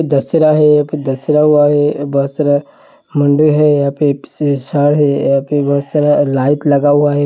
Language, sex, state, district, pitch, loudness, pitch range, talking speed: Hindi, male, Uttar Pradesh, Hamirpur, 145 Hz, -12 LUFS, 140-150 Hz, 165 wpm